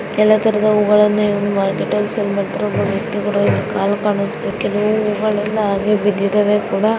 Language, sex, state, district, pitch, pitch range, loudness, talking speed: Kannada, female, Karnataka, Bijapur, 210 Hz, 205-210 Hz, -17 LUFS, 170 wpm